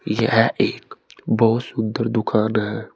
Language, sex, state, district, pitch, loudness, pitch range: Hindi, male, Uttar Pradesh, Saharanpur, 110 Hz, -20 LUFS, 110-115 Hz